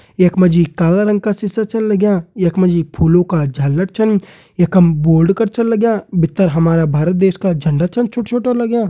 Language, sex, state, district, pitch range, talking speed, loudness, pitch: Hindi, male, Uttarakhand, Uttarkashi, 170-215 Hz, 200 wpm, -14 LUFS, 185 Hz